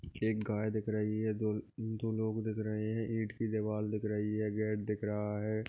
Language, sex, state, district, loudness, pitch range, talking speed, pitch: Hindi, male, Goa, North and South Goa, -36 LUFS, 105-110 Hz, 210 wpm, 110 Hz